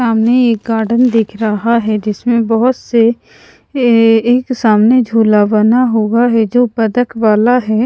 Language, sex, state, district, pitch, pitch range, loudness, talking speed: Hindi, female, Punjab, Pathankot, 230 Hz, 220-240 Hz, -12 LUFS, 155 wpm